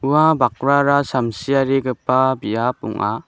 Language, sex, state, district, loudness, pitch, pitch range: Garo, male, Meghalaya, West Garo Hills, -18 LUFS, 130 Hz, 115-140 Hz